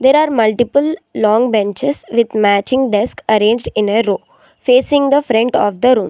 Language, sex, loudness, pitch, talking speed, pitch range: English, female, -14 LUFS, 235 Hz, 175 wpm, 215-265 Hz